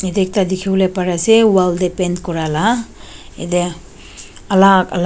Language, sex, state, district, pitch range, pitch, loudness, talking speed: Nagamese, female, Nagaland, Dimapur, 175-195 Hz, 180 Hz, -15 LUFS, 140 wpm